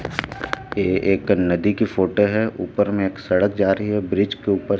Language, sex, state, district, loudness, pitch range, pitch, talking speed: Hindi, male, Chhattisgarh, Raipur, -20 LUFS, 95-105 Hz, 100 Hz, 200 wpm